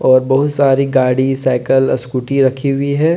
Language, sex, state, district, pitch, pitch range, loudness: Hindi, male, Jharkhand, Deoghar, 135 Hz, 130-140 Hz, -14 LUFS